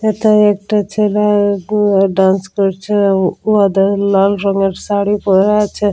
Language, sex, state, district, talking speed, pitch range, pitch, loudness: Bengali, female, West Bengal, Jalpaiguri, 160 wpm, 195-210 Hz, 200 Hz, -13 LUFS